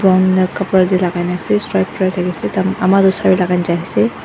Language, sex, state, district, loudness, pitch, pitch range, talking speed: Nagamese, female, Nagaland, Dimapur, -15 LUFS, 185 Hz, 180-190 Hz, 155 wpm